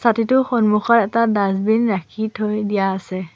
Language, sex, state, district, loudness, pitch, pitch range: Assamese, female, Assam, Sonitpur, -18 LUFS, 215 Hz, 195-230 Hz